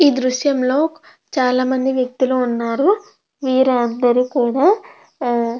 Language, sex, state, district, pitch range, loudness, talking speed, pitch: Telugu, female, Andhra Pradesh, Krishna, 250-290 Hz, -17 LUFS, 95 wpm, 260 Hz